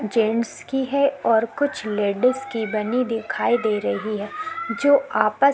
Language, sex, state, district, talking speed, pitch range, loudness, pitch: Hindi, female, Chhattisgarh, Korba, 130 wpm, 215-275 Hz, -22 LUFS, 230 Hz